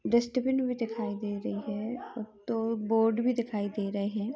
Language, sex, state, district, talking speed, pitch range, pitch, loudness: Hindi, female, Uttar Pradesh, Varanasi, 190 wpm, 210-235 Hz, 225 Hz, -31 LUFS